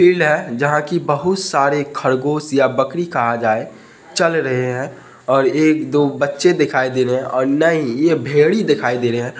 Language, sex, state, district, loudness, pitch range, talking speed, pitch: Hindi, male, Bihar, Madhepura, -17 LUFS, 130-160 Hz, 190 wpm, 145 Hz